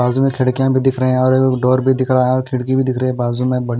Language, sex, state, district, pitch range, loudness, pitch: Hindi, male, Punjab, Kapurthala, 125-130 Hz, -16 LUFS, 130 Hz